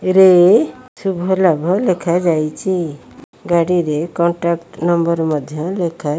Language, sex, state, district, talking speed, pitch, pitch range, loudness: Odia, female, Odisha, Malkangiri, 85 wpm, 170 Hz, 160-185 Hz, -16 LUFS